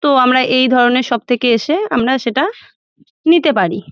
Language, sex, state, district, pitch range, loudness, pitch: Bengali, female, West Bengal, Jalpaiguri, 245-290 Hz, -14 LUFS, 255 Hz